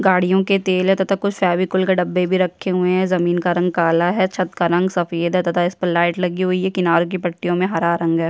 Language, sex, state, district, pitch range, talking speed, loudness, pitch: Hindi, female, Chhattisgarh, Jashpur, 175-185 Hz, 265 wpm, -18 LUFS, 180 Hz